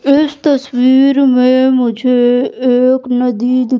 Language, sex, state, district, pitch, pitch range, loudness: Hindi, female, Madhya Pradesh, Katni, 255 Hz, 250-270 Hz, -11 LUFS